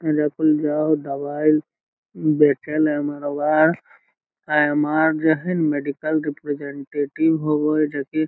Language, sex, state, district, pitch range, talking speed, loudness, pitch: Magahi, male, Bihar, Lakhisarai, 145-155 Hz, 150 wpm, -20 LUFS, 150 Hz